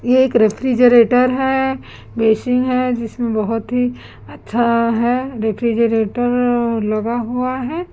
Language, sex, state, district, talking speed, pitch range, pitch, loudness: Hindi, female, Chhattisgarh, Raipur, 115 wpm, 230-255 Hz, 240 Hz, -16 LUFS